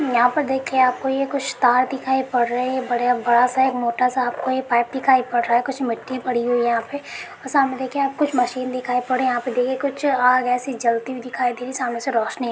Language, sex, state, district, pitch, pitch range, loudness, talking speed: Hindi, female, Jharkhand, Jamtara, 255 Hz, 245-265 Hz, -20 LUFS, 245 wpm